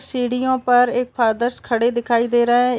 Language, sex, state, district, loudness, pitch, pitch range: Hindi, female, Uttar Pradesh, Varanasi, -18 LUFS, 245 Hz, 240-250 Hz